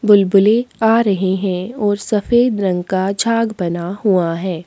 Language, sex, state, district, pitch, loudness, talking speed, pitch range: Hindi, female, Chhattisgarh, Sukma, 200 Hz, -16 LUFS, 165 wpm, 185-225 Hz